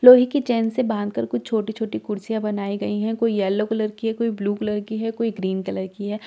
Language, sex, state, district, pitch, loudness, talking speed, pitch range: Hindi, female, Delhi, New Delhi, 215 Hz, -23 LUFS, 250 wpm, 205-225 Hz